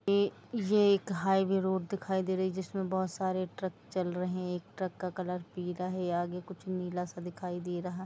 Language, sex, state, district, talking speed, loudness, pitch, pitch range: Hindi, female, Jharkhand, Jamtara, 215 wpm, -33 LUFS, 185 Hz, 180-190 Hz